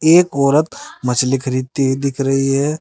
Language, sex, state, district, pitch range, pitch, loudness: Hindi, male, Uttar Pradesh, Saharanpur, 130-150 Hz, 135 Hz, -16 LUFS